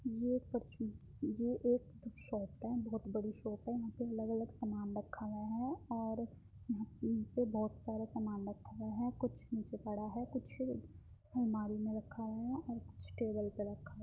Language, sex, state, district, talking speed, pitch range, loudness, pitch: Hindi, female, Uttar Pradesh, Muzaffarnagar, 185 wpm, 215-240 Hz, -41 LUFS, 225 Hz